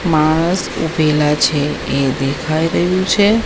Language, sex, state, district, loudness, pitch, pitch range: Gujarati, female, Gujarat, Gandhinagar, -15 LUFS, 155 Hz, 150-175 Hz